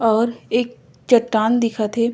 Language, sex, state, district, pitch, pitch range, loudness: Chhattisgarhi, female, Chhattisgarh, Korba, 230 Hz, 220-240 Hz, -19 LUFS